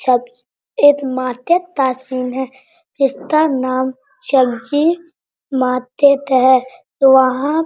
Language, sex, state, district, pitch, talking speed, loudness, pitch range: Hindi, female, Bihar, Araria, 265 Hz, 100 wpm, -15 LUFS, 255-290 Hz